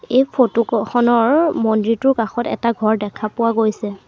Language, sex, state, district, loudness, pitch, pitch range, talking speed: Assamese, female, Assam, Sonitpur, -17 LUFS, 230 Hz, 220-240 Hz, 160 wpm